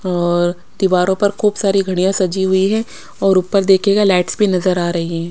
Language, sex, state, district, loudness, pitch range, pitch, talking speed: Hindi, female, Odisha, Khordha, -15 LUFS, 180-200 Hz, 190 Hz, 205 wpm